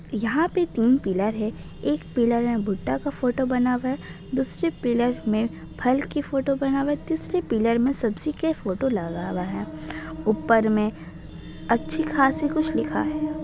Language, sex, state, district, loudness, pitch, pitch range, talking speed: Hindi, female, Uttar Pradesh, Budaun, -24 LUFS, 240 Hz, 210-280 Hz, 175 wpm